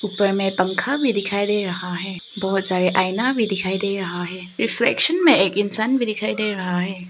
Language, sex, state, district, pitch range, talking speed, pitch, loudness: Hindi, female, Arunachal Pradesh, Papum Pare, 185-210 Hz, 210 wpm, 195 Hz, -20 LUFS